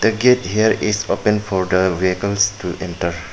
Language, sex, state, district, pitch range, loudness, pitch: English, male, Arunachal Pradesh, Papum Pare, 95-105 Hz, -18 LUFS, 100 Hz